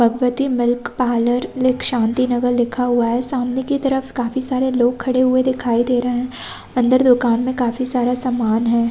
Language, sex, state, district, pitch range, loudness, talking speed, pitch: Hindi, female, Chhattisgarh, Raigarh, 240-255 Hz, -17 LUFS, 195 wpm, 250 Hz